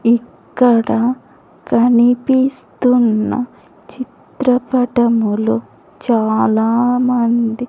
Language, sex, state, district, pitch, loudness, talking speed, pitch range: Telugu, female, Andhra Pradesh, Sri Satya Sai, 240 Hz, -15 LUFS, 40 wpm, 230-250 Hz